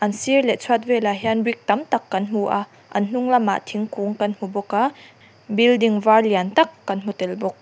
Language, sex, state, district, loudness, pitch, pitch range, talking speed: Mizo, female, Mizoram, Aizawl, -20 LUFS, 210 Hz, 200-240 Hz, 215 wpm